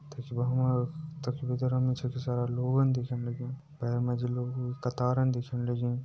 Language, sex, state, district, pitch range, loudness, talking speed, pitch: Garhwali, male, Uttarakhand, Uttarkashi, 125-130 Hz, -31 LUFS, 130 wpm, 125 Hz